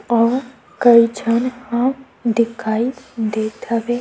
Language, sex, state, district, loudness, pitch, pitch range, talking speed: Chhattisgarhi, female, Chhattisgarh, Sukma, -18 LUFS, 235 Hz, 230-250 Hz, 105 wpm